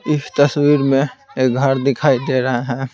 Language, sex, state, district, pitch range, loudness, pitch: Hindi, male, Bihar, Patna, 130-145 Hz, -16 LUFS, 135 Hz